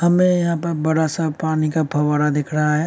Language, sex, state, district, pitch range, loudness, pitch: Hindi, male, Uttar Pradesh, Varanasi, 150-170 Hz, -19 LUFS, 160 Hz